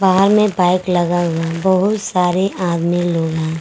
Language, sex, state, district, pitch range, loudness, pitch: Hindi, female, Jharkhand, Garhwa, 170-190 Hz, -16 LUFS, 180 Hz